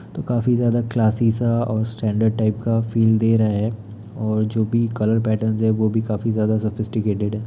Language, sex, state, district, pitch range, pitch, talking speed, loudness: Hindi, male, Bihar, Darbhanga, 110-115 Hz, 110 Hz, 195 wpm, -20 LUFS